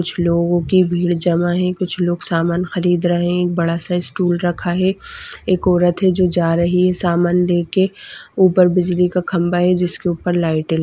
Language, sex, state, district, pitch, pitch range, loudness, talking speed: Hindi, female, West Bengal, Kolkata, 175 Hz, 175-180 Hz, -17 LUFS, 205 wpm